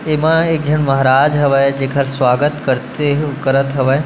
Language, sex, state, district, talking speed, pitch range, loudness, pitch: Chhattisgarhi, male, Chhattisgarh, Bilaspur, 150 wpm, 135-150 Hz, -14 LUFS, 140 Hz